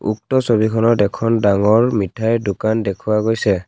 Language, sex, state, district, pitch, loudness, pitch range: Assamese, male, Assam, Kamrup Metropolitan, 110 Hz, -17 LUFS, 100-115 Hz